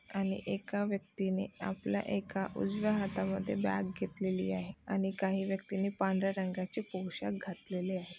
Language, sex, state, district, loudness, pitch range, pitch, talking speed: Marathi, female, Maharashtra, Nagpur, -36 LUFS, 180-195 Hz, 190 Hz, 140 wpm